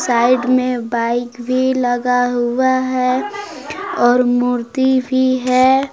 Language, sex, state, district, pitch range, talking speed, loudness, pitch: Hindi, female, Jharkhand, Palamu, 245-260 Hz, 110 wpm, -16 LUFS, 255 Hz